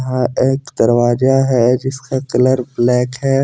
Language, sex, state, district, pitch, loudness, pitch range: Hindi, male, Jharkhand, Deoghar, 130 Hz, -15 LUFS, 125-130 Hz